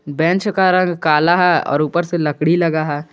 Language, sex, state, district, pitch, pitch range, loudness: Hindi, male, Jharkhand, Garhwa, 170 Hz, 150-175 Hz, -16 LUFS